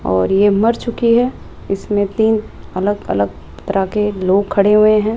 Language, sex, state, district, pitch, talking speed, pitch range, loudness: Hindi, female, Rajasthan, Jaipur, 205 Hz, 175 wpm, 190-215 Hz, -16 LUFS